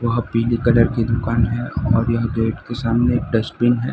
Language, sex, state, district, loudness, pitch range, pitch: Hindi, male, Gujarat, Valsad, -19 LUFS, 115-120 Hz, 115 Hz